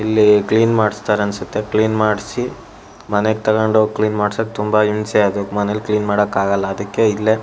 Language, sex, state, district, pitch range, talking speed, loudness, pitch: Kannada, male, Karnataka, Shimoga, 105-110 Hz, 135 wpm, -17 LUFS, 105 Hz